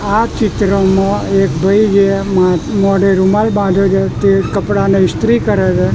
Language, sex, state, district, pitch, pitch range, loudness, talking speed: Gujarati, male, Gujarat, Gandhinagar, 195 Hz, 195-200 Hz, -12 LUFS, 140 wpm